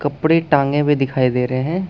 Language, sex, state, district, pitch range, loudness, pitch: Hindi, male, Chhattisgarh, Bastar, 130-155 Hz, -17 LUFS, 145 Hz